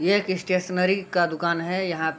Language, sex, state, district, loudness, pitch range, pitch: Hindi, male, Bihar, Gopalganj, -24 LUFS, 170-185 Hz, 180 Hz